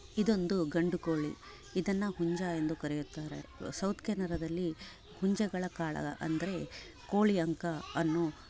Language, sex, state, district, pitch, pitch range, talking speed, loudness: Kannada, female, Karnataka, Dakshina Kannada, 170 Hz, 165-190 Hz, 105 wpm, -35 LUFS